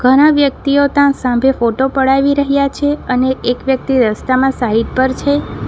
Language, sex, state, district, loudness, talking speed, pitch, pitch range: Gujarati, female, Gujarat, Valsad, -13 LUFS, 160 wpm, 265 Hz, 255-280 Hz